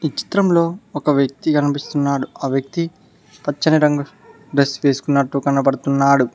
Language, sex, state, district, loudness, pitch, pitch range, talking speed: Telugu, male, Telangana, Mahabubabad, -18 LUFS, 145 Hz, 140-160 Hz, 105 wpm